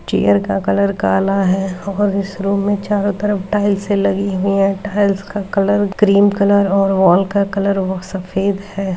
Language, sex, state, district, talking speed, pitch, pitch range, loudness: Hindi, female, Uttar Pradesh, Deoria, 180 wpm, 195 Hz, 190-200 Hz, -16 LUFS